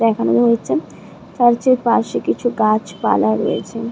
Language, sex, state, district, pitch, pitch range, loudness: Bengali, female, West Bengal, Dakshin Dinajpur, 230 Hz, 215-240 Hz, -17 LUFS